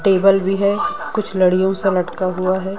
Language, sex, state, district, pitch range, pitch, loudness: Hindi, female, Chhattisgarh, Raipur, 185-200 Hz, 195 Hz, -17 LUFS